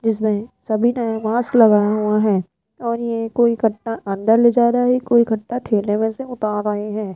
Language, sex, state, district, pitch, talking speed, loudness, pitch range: Hindi, female, Rajasthan, Jaipur, 225 Hz, 200 wpm, -18 LUFS, 210-235 Hz